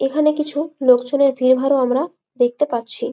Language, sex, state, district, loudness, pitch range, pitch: Bengali, female, West Bengal, Malda, -18 LUFS, 255-295 Hz, 270 Hz